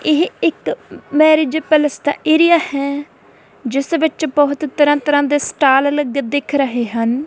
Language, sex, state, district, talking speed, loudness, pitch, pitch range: Punjabi, female, Punjab, Kapurthala, 150 wpm, -15 LUFS, 290 Hz, 280-310 Hz